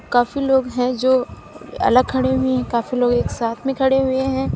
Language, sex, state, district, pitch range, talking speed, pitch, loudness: Hindi, female, Uttar Pradesh, Lalitpur, 245-265 Hz, 210 wpm, 260 Hz, -19 LUFS